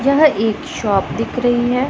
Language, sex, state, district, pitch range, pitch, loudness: Hindi, female, Punjab, Pathankot, 240-275 Hz, 250 Hz, -17 LUFS